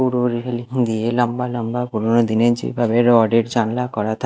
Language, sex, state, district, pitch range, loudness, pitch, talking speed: Bengali, male, Odisha, Malkangiri, 115-125 Hz, -19 LUFS, 120 Hz, 195 wpm